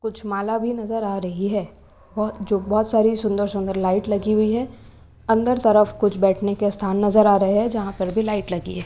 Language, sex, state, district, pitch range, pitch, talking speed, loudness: Hindi, female, Maharashtra, Gondia, 200-220 Hz, 205 Hz, 225 wpm, -20 LUFS